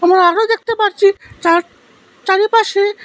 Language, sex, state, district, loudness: Bengali, male, Assam, Hailakandi, -14 LUFS